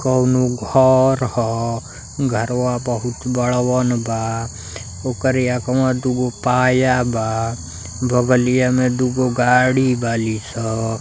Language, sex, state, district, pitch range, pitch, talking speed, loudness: Bhojpuri, male, Uttar Pradesh, Deoria, 115-125 Hz, 125 Hz, 100 wpm, -18 LUFS